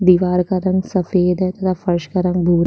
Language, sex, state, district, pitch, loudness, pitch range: Hindi, female, Chhattisgarh, Sukma, 180 Hz, -17 LUFS, 180-185 Hz